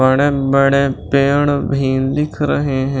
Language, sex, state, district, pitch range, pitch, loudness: Hindi, male, Maharashtra, Washim, 135-140 Hz, 140 Hz, -15 LUFS